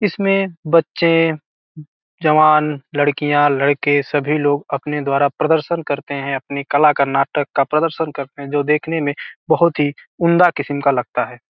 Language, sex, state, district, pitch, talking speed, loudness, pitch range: Hindi, male, Bihar, Gopalganj, 145 Hz, 160 wpm, -17 LUFS, 140-160 Hz